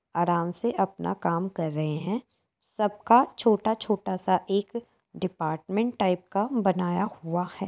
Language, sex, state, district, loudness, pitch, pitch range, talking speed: Hindi, female, Uttar Pradesh, Etah, -27 LUFS, 195 Hz, 175-215 Hz, 140 wpm